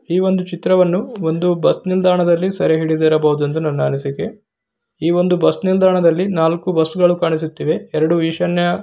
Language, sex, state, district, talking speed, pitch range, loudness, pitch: Kannada, male, Karnataka, Gulbarga, 130 wpm, 160-180 Hz, -16 LUFS, 175 Hz